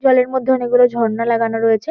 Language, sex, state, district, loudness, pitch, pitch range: Bengali, female, West Bengal, Kolkata, -16 LUFS, 245 Hz, 230-260 Hz